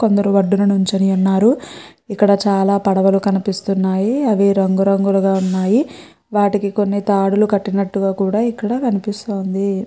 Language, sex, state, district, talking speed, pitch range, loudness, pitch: Telugu, female, Andhra Pradesh, Srikakulam, 115 wpm, 195-205 Hz, -16 LUFS, 200 Hz